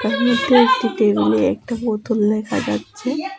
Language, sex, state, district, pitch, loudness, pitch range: Bengali, female, West Bengal, Alipurduar, 230 Hz, -18 LUFS, 210-255 Hz